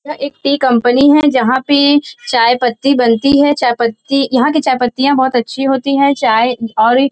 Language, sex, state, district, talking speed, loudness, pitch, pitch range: Hindi, female, Uttar Pradesh, Varanasi, 195 wpm, -12 LUFS, 265 Hz, 245-280 Hz